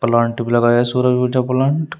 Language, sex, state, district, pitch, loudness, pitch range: Hindi, male, Uttar Pradesh, Shamli, 125 Hz, -16 LUFS, 120-130 Hz